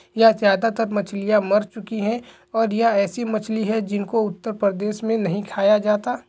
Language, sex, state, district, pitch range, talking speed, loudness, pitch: Hindi, male, Chhattisgarh, Balrampur, 205-225 Hz, 190 wpm, -21 LUFS, 215 Hz